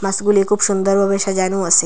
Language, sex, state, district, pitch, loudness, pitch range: Bengali, female, Assam, Hailakandi, 195 Hz, -16 LUFS, 195-200 Hz